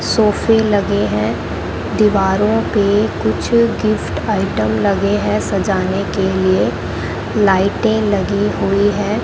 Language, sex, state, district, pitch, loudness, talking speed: Hindi, male, Rajasthan, Bikaner, 200 Hz, -16 LUFS, 110 wpm